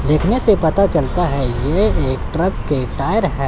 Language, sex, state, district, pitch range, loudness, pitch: Hindi, male, Chandigarh, Chandigarh, 150-200 Hz, -17 LUFS, 170 Hz